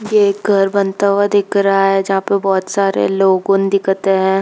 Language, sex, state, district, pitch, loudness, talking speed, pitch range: Hindi, female, Jharkhand, Jamtara, 195 Hz, -14 LUFS, 205 wpm, 195-200 Hz